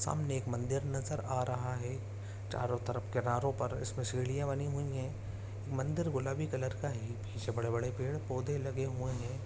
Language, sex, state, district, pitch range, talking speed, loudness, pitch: Hindi, male, Bihar, Samastipur, 115-135 Hz, 165 wpm, -37 LUFS, 125 Hz